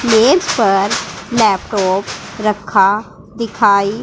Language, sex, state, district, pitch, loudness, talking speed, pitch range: Hindi, female, Punjab, Pathankot, 205 Hz, -14 LUFS, 75 wpm, 195-220 Hz